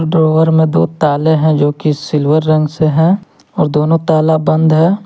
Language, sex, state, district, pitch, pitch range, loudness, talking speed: Hindi, male, Jharkhand, Ranchi, 155 Hz, 150-160 Hz, -12 LUFS, 190 wpm